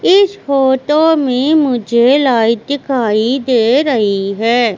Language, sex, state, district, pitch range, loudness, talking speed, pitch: Hindi, female, Madhya Pradesh, Katni, 230-285 Hz, -12 LUFS, 115 wpm, 260 Hz